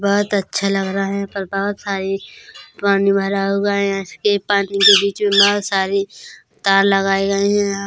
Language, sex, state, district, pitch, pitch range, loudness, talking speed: Hindi, female, Chhattisgarh, Korba, 200 Hz, 195-200 Hz, -17 LUFS, 175 wpm